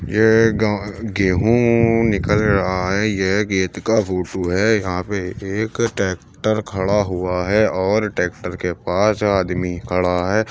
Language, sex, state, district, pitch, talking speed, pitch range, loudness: Hindi, male, Uttar Pradesh, Jyotiba Phule Nagar, 100 Hz, 145 wpm, 90-110 Hz, -19 LUFS